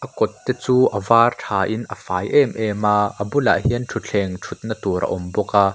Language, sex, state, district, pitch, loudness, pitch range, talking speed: Mizo, male, Mizoram, Aizawl, 105 Hz, -20 LUFS, 100-120 Hz, 220 wpm